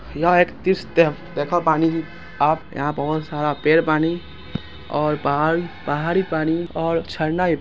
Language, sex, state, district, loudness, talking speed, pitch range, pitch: Angika, male, Bihar, Samastipur, -21 LUFS, 135 wpm, 150-170 Hz, 160 Hz